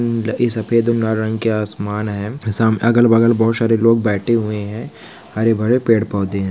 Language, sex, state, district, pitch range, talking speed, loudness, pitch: Hindi, male, Maharashtra, Solapur, 105-115 Hz, 195 wpm, -17 LUFS, 110 Hz